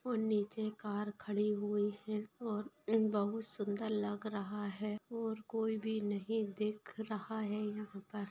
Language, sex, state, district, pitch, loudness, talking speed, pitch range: Hindi, female, Bihar, Muzaffarpur, 210 Hz, -39 LUFS, 160 wpm, 205-220 Hz